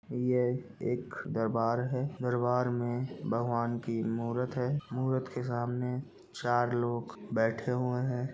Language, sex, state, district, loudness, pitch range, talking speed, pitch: Hindi, male, Chhattisgarh, Rajnandgaon, -32 LUFS, 120-125 Hz, 130 wpm, 125 Hz